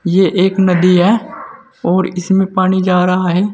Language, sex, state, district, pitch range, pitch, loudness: Hindi, male, Uttar Pradesh, Saharanpur, 180-200 Hz, 185 Hz, -13 LUFS